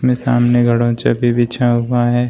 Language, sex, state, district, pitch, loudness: Hindi, male, Uttar Pradesh, Shamli, 120 Hz, -14 LUFS